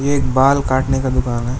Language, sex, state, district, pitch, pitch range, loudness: Hindi, male, West Bengal, Alipurduar, 130 Hz, 130-135 Hz, -16 LUFS